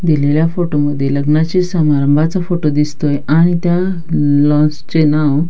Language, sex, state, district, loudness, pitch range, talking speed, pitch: Marathi, female, Maharashtra, Dhule, -14 LUFS, 145-170 Hz, 130 wpm, 150 Hz